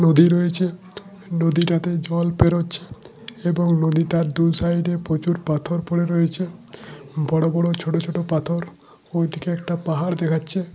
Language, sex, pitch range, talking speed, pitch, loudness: Bengali, male, 165-175 Hz, 125 wpm, 170 Hz, -21 LUFS